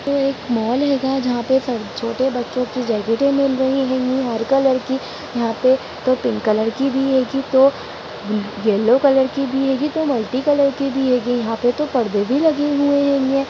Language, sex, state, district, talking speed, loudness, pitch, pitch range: Hindi, female, Bihar, Darbhanga, 200 wpm, -18 LUFS, 260 Hz, 240-275 Hz